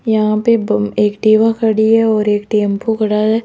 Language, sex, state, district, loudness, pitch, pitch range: Hindi, female, Rajasthan, Jaipur, -14 LUFS, 215 Hz, 210-225 Hz